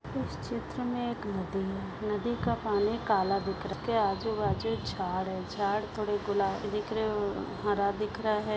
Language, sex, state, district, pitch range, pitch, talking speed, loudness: Hindi, female, Maharashtra, Nagpur, 195-215 Hz, 210 Hz, 190 wpm, -32 LUFS